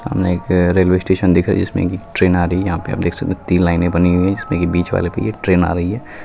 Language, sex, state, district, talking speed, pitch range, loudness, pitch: Hindi, male, Bihar, Purnia, 260 wpm, 85-95 Hz, -16 LUFS, 90 Hz